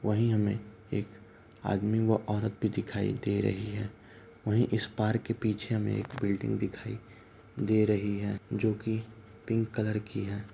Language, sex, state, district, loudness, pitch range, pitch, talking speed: Hindi, male, Uttar Pradesh, Varanasi, -31 LUFS, 105-110 Hz, 110 Hz, 180 wpm